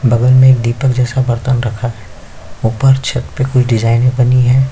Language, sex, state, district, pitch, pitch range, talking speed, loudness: Hindi, male, Chhattisgarh, Kabirdham, 125 Hz, 115-130 Hz, 205 wpm, -12 LUFS